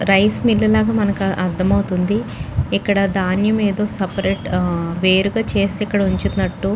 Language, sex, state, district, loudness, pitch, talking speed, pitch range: Telugu, female, Telangana, Nalgonda, -18 LUFS, 195 Hz, 135 wpm, 185-210 Hz